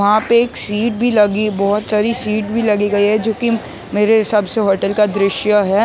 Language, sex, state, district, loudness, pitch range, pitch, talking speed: Hindi, male, Maharashtra, Mumbai Suburban, -15 LUFS, 205-220 Hz, 210 Hz, 225 wpm